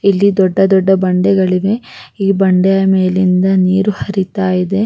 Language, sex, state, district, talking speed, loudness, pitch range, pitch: Kannada, female, Karnataka, Raichur, 150 wpm, -13 LUFS, 185-195 Hz, 190 Hz